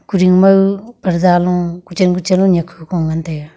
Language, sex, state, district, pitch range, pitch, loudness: Wancho, female, Arunachal Pradesh, Longding, 170-190 Hz, 180 Hz, -14 LUFS